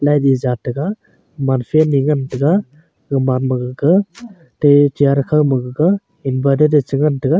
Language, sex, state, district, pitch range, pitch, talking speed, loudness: Wancho, male, Arunachal Pradesh, Longding, 135-155 Hz, 145 Hz, 160 wpm, -16 LUFS